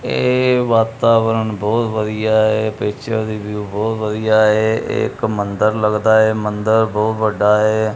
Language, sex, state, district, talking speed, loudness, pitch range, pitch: Punjabi, male, Punjab, Kapurthala, 150 wpm, -16 LUFS, 105-110 Hz, 110 Hz